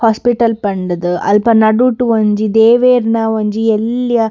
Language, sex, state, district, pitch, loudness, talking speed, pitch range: Tulu, female, Karnataka, Dakshina Kannada, 225 Hz, -12 LUFS, 110 wpm, 215-235 Hz